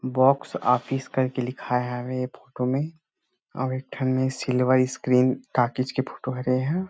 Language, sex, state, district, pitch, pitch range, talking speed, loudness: Chhattisgarhi, male, Chhattisgarh, Rajnandgaon, 130 Hz, 125-130 Hz, 175 wpm, -25 LUFS